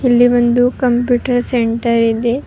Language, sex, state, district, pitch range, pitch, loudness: Kannada, female, Karnataka, Raichur, 235-245 Hz, 245 Hz, -14 LUFS